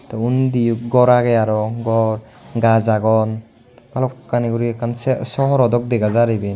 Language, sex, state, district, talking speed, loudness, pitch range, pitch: Chakma, male, Tripura, Unakoti, 145 wpm, -17 LUFS, 110-125 Hz, 115 Hz